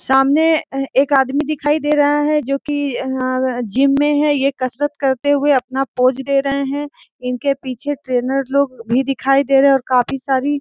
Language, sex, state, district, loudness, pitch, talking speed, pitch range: Hindi, female, Jharkhand, Sahebganj, -17 LUFS, 275 Hz, 205 wpm, 260-290 Hz